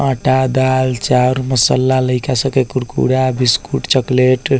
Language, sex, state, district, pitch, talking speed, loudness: Bajjika, male, Bihar, Vaishali, 130 Hz, 145 wpm, -14 LUFS